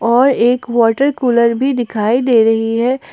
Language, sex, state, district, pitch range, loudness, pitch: Hindi, female, Jharkhand, Ranchi, 230-255 Hz, -13 LUFS, 240 Hz